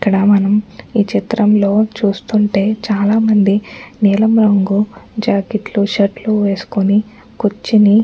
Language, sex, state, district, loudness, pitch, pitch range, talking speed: Telugu, female, Andhra Pradesh, Anantapur, -14 LUFS, 210 Hz, 200-215 Hz, 110 wpm